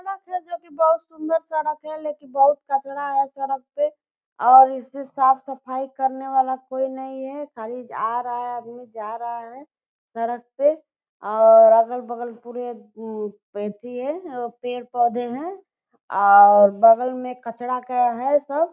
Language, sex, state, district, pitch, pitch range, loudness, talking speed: Hindi, female, Bihar, Purnia, 260 Hz, 240-290 Hz, -20 LUFS, 145 wpm